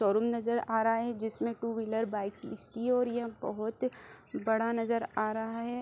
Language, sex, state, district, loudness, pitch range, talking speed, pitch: Hindi, female, Bihar, Supaul, -33 LUFS, 220-235 Hz, 195 wpm, 230 Hz